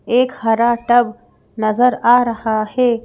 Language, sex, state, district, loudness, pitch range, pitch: Hindi, female, Madhya Pradesh, Bhopal, -16 LUFS, 225-245 Hz, 235 Hz